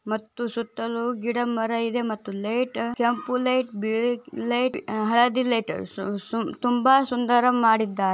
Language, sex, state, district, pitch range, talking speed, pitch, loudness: Kannada, female, Karnataka, Bijapur, 220-245 Hz, 135 wpm, 235 Hz, -24 LUFS